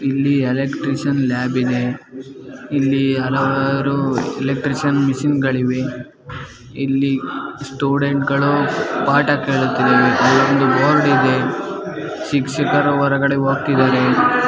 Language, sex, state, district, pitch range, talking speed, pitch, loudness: Kannada, female, Karnataka, Bijapur, 130-140 Hz, 85 wpm, 135 Hz, -17 LUFS